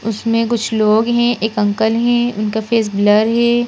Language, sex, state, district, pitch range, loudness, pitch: Hindi, female, Madhya Pradesh, Bhopal, 215-235 Hz, -15 LUFS, 225 Hz